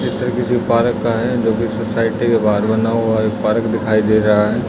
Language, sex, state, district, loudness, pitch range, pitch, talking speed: Hindi, male, Uttar Pradesh, Jyotiba Phule Nagar, -16 LUFS, 110-115 Hz, 115 Hz, 245 wpm